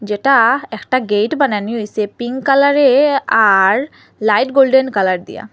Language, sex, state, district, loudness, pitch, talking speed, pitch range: Bengali, female, Assam, Hailakandi, -14 LUFS, 240 Hz, 130 wpm, 210-275 Hz